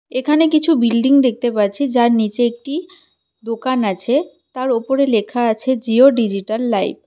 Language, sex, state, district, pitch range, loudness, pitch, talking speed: Bengali, female, West Bengal, Cooch Behar, 230-275 Hz, -16 LUFS, 245 Hz, 155 wpm